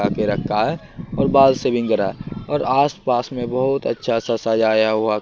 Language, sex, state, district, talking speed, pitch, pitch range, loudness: Hindi, male, Bihar, Katihar, 185 wpm, 120 Hz, 110-130 Hz, -19 LUFS